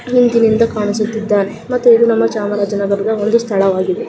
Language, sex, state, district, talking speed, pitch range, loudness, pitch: Kannada, female, Karnataka, Chamarajanagar, 115 wpm, 205-230 Hz, -14 LUFS, 220 Hz